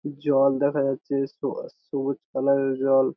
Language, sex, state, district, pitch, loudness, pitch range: Bengali, male, West Bengal, Jhargram, 140 Hz, -24 LUFS, 135-145 Hz